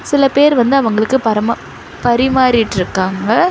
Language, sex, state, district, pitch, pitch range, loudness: Tamil, female, Tamil Nadu, Chennai, 240 Hz, 215-265 Hz, -13 LUFS